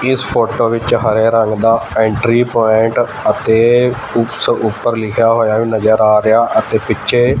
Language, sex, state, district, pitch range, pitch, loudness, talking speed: Punjabi, male, Punjab, Fazilka, 110-120 Hz, 115 Hz, -13 LUFS, 155 wpm